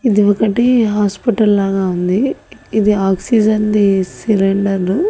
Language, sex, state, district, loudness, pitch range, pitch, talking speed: Telugu, female, Andhra Pradesh, Annamaya, -14 LUFS, 195-220 Hz, 210 Hz, 120 wpm